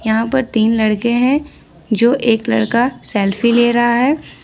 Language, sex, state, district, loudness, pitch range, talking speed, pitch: Hindi, female, Jharkhand, Ranchi, -15 LUFS, 220-245 Hz, 160 wpm, 235 Hz